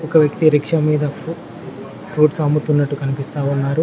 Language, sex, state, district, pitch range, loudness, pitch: Telugu, male, Telangana, Mahabubabad, 145-160 Hz, -17 LUFS, 150 Hz